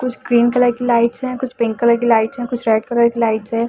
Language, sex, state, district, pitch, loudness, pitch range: Hindi, female, Uttar Pradesh, Budaun, 235 Hz, -16 LUFS, 230-245 Hz